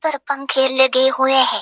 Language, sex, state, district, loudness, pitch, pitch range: Hindi, female, Assam, Hailakandi, -15 LUFS, 265 Hz, 265-275 Hz